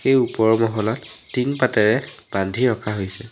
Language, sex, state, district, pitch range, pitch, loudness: Assamese, male, Assam, Sonitpur, 105-125 Hz, 115 Hz, -21 LUFS